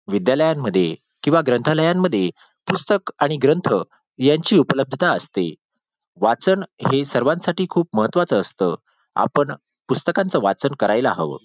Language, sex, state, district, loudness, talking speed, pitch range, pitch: Marathi, male, Maharashtra, Dhule, -19 LUFS, 105 wpm, 115-175 Hz, 140 Hz